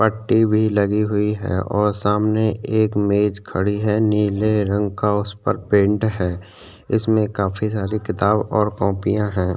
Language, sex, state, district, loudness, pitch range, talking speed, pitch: Hindi, male, Chhattisgarh, Sukma, -19 LUFS, 100-110 Hz, 165 wpm, 105 Hz